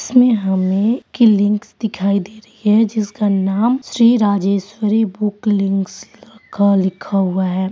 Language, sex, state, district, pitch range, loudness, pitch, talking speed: Hindi, female, Bihar, East Champaran, 195-225 Hz, -16 LUFS, 210 Hz, 125 wpm